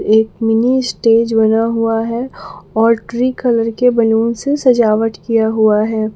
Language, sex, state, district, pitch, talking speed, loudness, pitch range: Hindi, female, Jharkhand, Palamu, 225 Hz, 155 wpm, -14 LUFS, 220-235 Hz